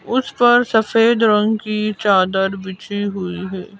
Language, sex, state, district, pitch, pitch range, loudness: Hindi, female, Madhya Pradesh, Bhopal, 210 Hz, 190-225 Hz, -17 LUFS